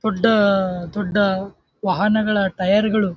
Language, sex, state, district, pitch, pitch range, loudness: Kannada, male, Karnataka, Bijapur, 205 Hz, 190-215 Hz, -19 LUFS